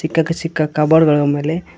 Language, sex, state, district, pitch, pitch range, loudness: Kannada, male, Karnataka, Koppal, 160 Hz, 150-165 Hz, -15 LUFS